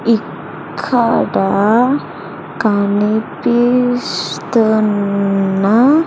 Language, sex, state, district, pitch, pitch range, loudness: Telugu, female, Andhra Pradesh, Sri Satya Sai, 220 Hz, 200-245 Hz, -14 LUFS